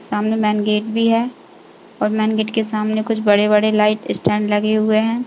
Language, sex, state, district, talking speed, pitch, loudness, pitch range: Hindi, female, Uttar Pradesh, Jalaun, 195 wpm, 215 Hz, -17 LUFS, 210-220 Hz